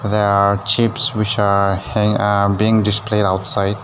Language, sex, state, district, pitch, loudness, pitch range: English, male, Nagaland, Dimapur, 105 Hz, -15 LUFS, 100-110 Hz